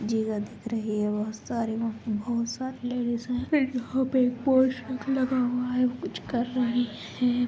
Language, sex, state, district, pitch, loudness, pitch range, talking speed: Hindi, female, Bihar, Sitamarhi, 245 Hz, -28 LUFS, 230-255 Hz, 175 wpm